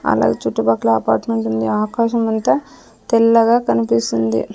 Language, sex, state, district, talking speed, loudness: Telugu, female, Andhra Pradesh, Sri Satya Sai, 105 wpm, -16 LUFS